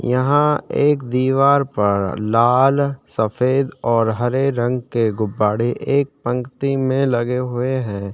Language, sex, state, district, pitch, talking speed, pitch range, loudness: Hindi, male, Chhattisgarh, Sukma, 125 Hz, 125 wpm, 115-135 Hz, -18 LUFS